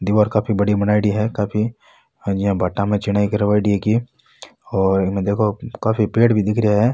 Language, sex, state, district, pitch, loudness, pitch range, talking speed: Marwari, male, Rajasthan, Nagaur, 105 Hz, -19 LUFS, 100-110 Hz, 200 wpm